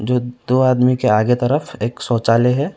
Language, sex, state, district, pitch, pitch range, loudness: Hindi, male, West Bengal, Alipurduar, 125 Hz, 120-130 Hz, -17 LUFS